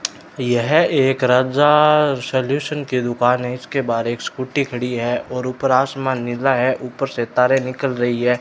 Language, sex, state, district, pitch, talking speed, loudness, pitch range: Hindi, male, Rajasthan, Bikaner, 130 Hz, 165 wpm, -18 LUFS, 125-135 Hz